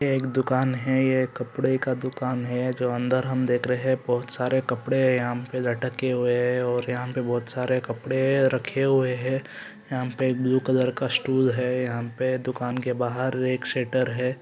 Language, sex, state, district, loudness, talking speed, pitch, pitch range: Hindi, male, Chhattisgarh, Rajnandgaon, -25 LUFS, 205 wpm, 130 Hz, 125-130 Hz